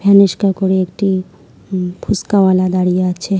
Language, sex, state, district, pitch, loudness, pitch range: Bengali, female, West Bengal, Alipurduar, 190 Hz, -15 LUFS, 185-195 Hz